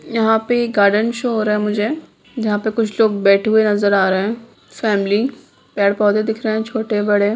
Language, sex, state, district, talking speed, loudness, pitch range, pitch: Hindi, female, Bihar, Begusarai, 210 wpm, -17 LUFS, 205-225 Hz, 215 Hz